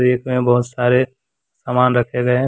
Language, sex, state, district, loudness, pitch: Hindi, male, Jharkhand, Deoghar, -17 LUFS, 125 Hz